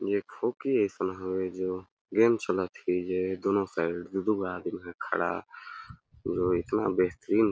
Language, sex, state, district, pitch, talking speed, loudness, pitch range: Awadhi, male, Chhattisgarh, Balrampur, 95 Hz, 185 wpm, -30 LUFS, 90-100 Hz